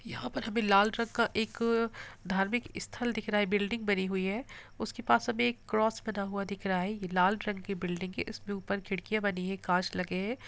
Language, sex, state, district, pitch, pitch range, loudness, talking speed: Hindi, female, Bihar, Gopalganj, 200 Hz, 190-220 Hz, -32 LUFS, 230 wpm